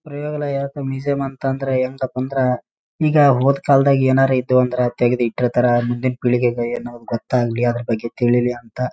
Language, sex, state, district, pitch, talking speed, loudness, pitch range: Kannada, male, Karnataka, Raichur, 125 Hz, 160 wpm, -19 LUFS, 120-135 Hz